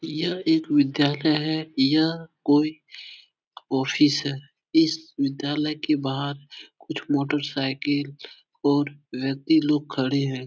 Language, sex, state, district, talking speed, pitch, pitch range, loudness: Hindi, male, Bihar, Supaul, 115 wpm, 145 Hz, 140-155 Hz, -24 LUFS